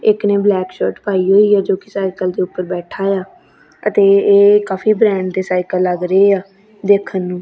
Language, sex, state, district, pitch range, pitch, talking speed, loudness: Punjabi, female, Punjab, Kapurthala, 185-205 Hz, 195 Hz, 200 wpm, -15 LUFS